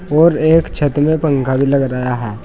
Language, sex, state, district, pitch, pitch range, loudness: Hindi, male, Uttar Pradesh, Saharanpur, 145 Hz, 130-155 Hz, -14 LUFS